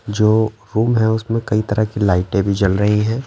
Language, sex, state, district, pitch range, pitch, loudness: Hindi, male, Bihar, Patna, 105-110 Hz, 105 Hz, -17 LUFS